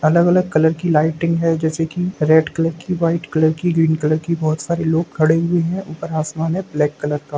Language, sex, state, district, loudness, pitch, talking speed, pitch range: Hindi, male, Bihar, Sitamarhi, -18 LUFS, 160 Hz, 225 wpm, 155-170 Hz